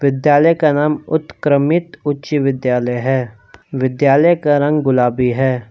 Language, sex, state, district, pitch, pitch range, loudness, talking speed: Hindi, male, Jharkhand, Palamu, 140 Hz, 130-150 Hz, -15 LUFS, 125 wpm